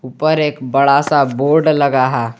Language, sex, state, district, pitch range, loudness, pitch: Hindi, male, Jharkhand, Garhwa, 130-150 Hz, -14 LUFS, 140 Hz